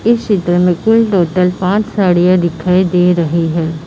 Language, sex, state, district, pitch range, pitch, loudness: Hindi, female, Maharashtra, Mumbai Suburban, 175-195 Hz, 180 Hz, -12 LUFS